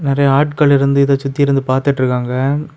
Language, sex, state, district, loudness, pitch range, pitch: Tamil, male, Tamil Nadu, Kanyakumari, -14 LUFS, 135-140 Hz, 140 Hz